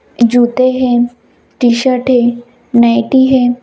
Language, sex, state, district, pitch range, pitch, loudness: Hindi, female, Bihar, Gaya, 240-255 Hz, 245 Hz, -11 LUFS